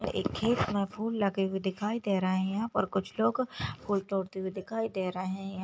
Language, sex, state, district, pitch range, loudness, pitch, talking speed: Hindi, female, Maharashtra, Solapur, 190-215 Hz, -31 LUFS, 195 Hz, 225 wpm